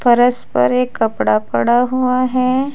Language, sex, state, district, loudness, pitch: Hindi, female, Uttar Pradesh, Saharanpur, -15 LUFS, 240 Hz